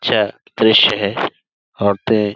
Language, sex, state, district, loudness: Hindi, male, Uttar Pradesh, Budaun, -16 LUFS